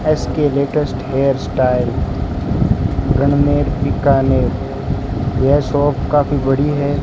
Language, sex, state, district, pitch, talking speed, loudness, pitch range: Hindi, male, Rajasthan, Bikaner, 140 Hz, 95 wpm, -16 LUFS, 130-145 Hz